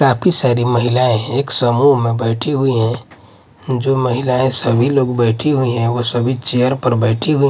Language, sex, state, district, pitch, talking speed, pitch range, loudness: Hindi, male, Odisha, Malkangiri, 125 Hz, 185 wpm, 120-135 Hz, -15 LUFS